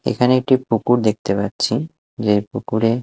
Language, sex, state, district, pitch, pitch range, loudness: Bengali, male, Odisha, Malkangiri, 115 Hz, 105-125 Hz, -19 LUFS